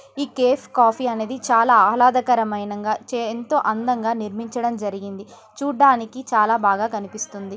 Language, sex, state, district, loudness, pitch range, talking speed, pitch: Telugu, female, Telangana, Nalgonda, -20 LUFS, 215-250 Hz, 110 wpm, 230 Hz